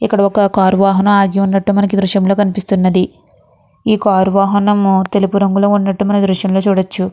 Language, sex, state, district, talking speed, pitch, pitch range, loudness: Telugu, female, Andhra Pradesh, Guntur, 185 wpm, 195 Hz, 195-200 Hz, -13 LUFS